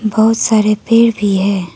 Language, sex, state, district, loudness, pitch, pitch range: Hindi, female, Arunachal Pradesh, Papum Pare, -12 LUFS, 215 Hz, 200-225 Hz